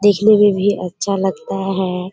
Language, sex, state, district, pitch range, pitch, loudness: Hindi, female, Bihar, Kishanganj, 190-205 Hz, 195 Hz, -16 LUFS